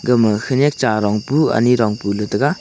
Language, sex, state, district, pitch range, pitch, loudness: Wancho, male, Arunachal Pradesh, Longding, 105-135 Hz, 115 Hz, -16 LUFS